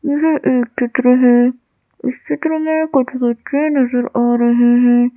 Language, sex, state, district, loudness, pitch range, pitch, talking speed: Hindi, female, Madhya Pradesh, Bhopal, -15 LUFS, 245-285 Hz, 250 Hz, 150 wpm